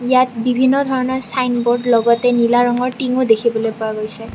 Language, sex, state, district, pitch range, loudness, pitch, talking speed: Assamese, female, Assam, Kamrup Metropolitan, 235-255 Hz, -16 LUFS, 245 Hz, 150 wpm